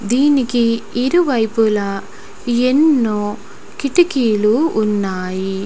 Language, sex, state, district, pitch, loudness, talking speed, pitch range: Telugu, female, Telangana, Nalgonda, 225 Hz, -16 LUFS, 65 wpm, 205-255 Hz